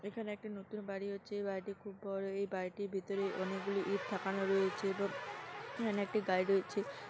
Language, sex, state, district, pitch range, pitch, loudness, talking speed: Bengali, female, West Bengal, Paschim Medinipur, 195-205 Hz, 195 Hz, -38 LUFS, 180 wpm